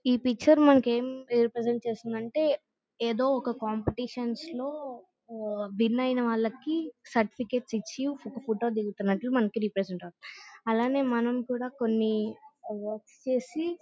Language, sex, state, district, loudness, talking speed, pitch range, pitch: Telugu, female, Andhra Pradesh, Guntur, -29 LUFS, 115 wpm, 225-265 Hz, 240 Hz